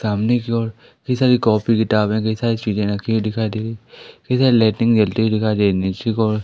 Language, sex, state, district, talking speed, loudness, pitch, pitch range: Hindi, male, Madhya Pradesh, Katni, 240 wpm, -18 LUFS, 110 Hz, 105-115 Hz